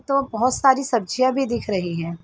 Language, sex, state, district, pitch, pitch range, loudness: Hindi, female, Uttar Pradesh, Varanasi, 240 Hz, 195-265 Hz, -21 LUFS